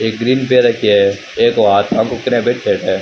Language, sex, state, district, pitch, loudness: Rajasthani, male, Rajasthan, Churu, 130 Hz, -13 LUFS